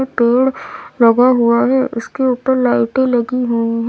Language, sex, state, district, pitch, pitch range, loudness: Hindi, female, Uttar Pradesh, Lalitpur, 245 Hz, 235-260 Hz, -14 LUFS